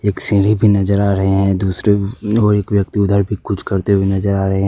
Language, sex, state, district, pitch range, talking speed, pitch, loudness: Hindi, male, Jharkhand, Ranchi, 95-105 Hz, 245 wpm, 100 Hz, -15 LUFS